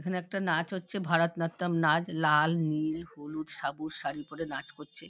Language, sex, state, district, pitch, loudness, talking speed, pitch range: Bengali, female, West Bengal, Dakshin Dinajpur, 165 Hz, -31 LUFS, 190 wpm, 155-170 Hz